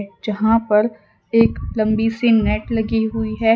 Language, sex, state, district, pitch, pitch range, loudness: Hindi, female, Gujarat, Valsad, 220 Hz, 215-225 Hz, -18 LUFS